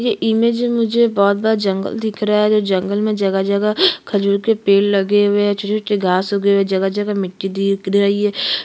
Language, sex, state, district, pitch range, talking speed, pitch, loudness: Hindi, female, Chhattisgarh, Sukma, 195-215 Hz, 215 wpm, 205 Hz, -16 LUFS